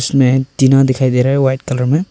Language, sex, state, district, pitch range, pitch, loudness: Hindi, male, Arunachal Pradesh, Longding, 130-135 Hz, 130 Hz, -13 LUFS